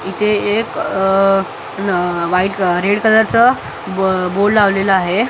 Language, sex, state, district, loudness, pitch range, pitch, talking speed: Marathi, male, Maharashtra, Mumbai Suburban, -14 LUFS, 190-210 Hz, 195 Hz, 125 wpm